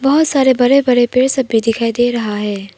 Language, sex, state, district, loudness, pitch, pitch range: Hindi, female, Arunachal Pradesh, Papum Pare, -14 LUFS, 245 Hz, 225-265 Hz